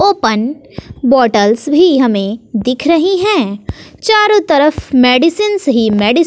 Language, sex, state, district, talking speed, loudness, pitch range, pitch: Hindi, female, Bihar, West Champaran, 115 wpm, -11 LUFS, 225-335 Hz, 265 Hz